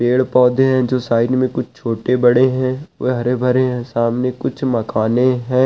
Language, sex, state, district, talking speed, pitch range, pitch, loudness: Hindi, male, Rajasthan, Nagaur, 190 wpm, 120-130 Hz, 125 Hz, -17 LUFS